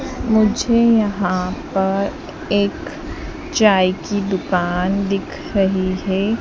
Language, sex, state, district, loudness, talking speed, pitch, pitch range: Hindi, female, Madhya Pradesh, Dhar, -18 LUFS, 95 wpm, 200 Hz, 190-230 Hz